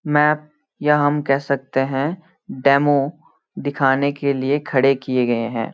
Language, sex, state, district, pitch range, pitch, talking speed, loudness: Hindi, male, Uttarakhand, Uttarkashi, 135-150 Hz, 140 Hz, 145 wpm, -19 LUFS